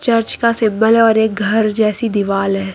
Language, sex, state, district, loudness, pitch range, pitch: Hindi, male, Uttar Pradesh, Lucknow, -14 LUFS, 205-230 Hz, 220 Hz